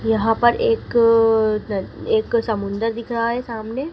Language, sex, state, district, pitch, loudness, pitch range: Hindi, female, Madhya Pradesh, Dhar, 230 Hz, -19 LUFS, 220-240 Hz